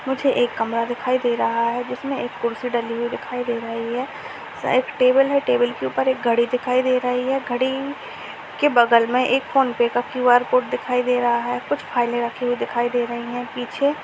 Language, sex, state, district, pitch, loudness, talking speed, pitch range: Hindi, female, Uttar Pradesh, Jalaun, 245 Hz, -21 LUFS, 215 wpm, 235-255 Hz